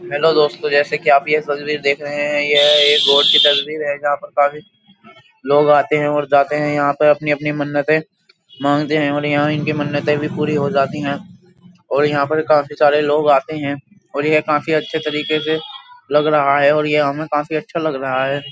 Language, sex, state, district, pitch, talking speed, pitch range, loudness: Hindi, male, Uttar Pradesh, Jyotiba Phule Nagar, 150 Hz, 210 wpm, 145-155 Hz, -16 LUFS